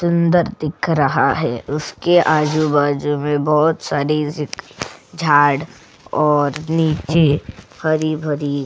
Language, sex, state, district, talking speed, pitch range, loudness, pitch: Hindi, female, Goa, North and South Goa, 90 wpm, 145-160 Hz, -17 LUFS, 150 Hz